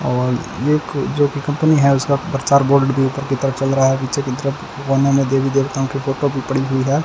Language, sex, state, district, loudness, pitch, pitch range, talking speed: Hindi, male, Rajasthan, Bikaner, -17 LUFS, 135 Hz, 135-140 Hz, 240 wpm